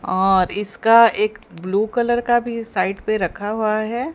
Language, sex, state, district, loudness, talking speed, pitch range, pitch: Hindi, female, Odisha, Sambalpur, -19 LUFS, 175 wpm, 195-230 Hz, 215 Hz